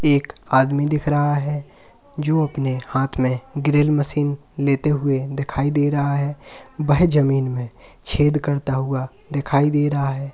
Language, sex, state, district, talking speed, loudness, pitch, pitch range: Hindi, male, Uttar Pradesh, Lalitpur, 155 wpm, -20 LUFS, 140 Hz, 135-145 Hz